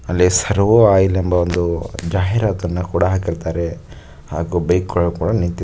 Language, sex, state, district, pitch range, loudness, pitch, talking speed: Kannada, male, Karnataka, Shimoga, 85-95 Hz, -17 LUFS, 90 Hz, 140 wpm